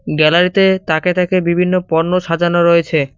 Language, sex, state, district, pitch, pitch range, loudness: Bengali, male, West Bengal, Cooch Behar, 175 Hz, 165-180 Hz, -14 LUFS